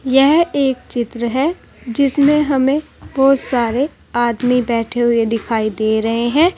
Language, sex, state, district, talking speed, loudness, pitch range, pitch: Hindi, female, Uttar Pradesh, Saharanpur, 135 wpm, -16 LUFS, 235-275 Hz, 250 Hz